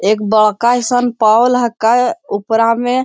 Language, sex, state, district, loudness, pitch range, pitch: Hindi, male, Bihar, Jamui, -13 LUFS, 215-245 Hz, 230 Hz